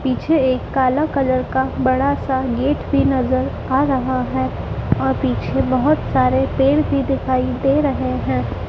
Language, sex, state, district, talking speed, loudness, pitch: Hindi, female, Madhya Pradesh, Dhar, 160 wpm, -18 LUFS, 255 Hz